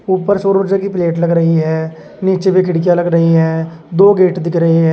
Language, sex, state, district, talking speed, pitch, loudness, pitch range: Hindi, male, Uttar Pradesh, Shamli, 230 wpm, 175 Hz, -13 LUFS, 165-190 Hz